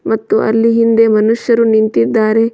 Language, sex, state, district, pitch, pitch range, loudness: Kannada, female, Karnataka, Bidar, 225 Hz, 220-230 Hz, -12 LUFS